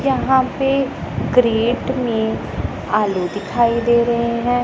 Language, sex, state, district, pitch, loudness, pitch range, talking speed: Hindi, female, Punjab, Pathankot, 235 Hz, -18 LUFS, 225-255 Hz, 115 wpm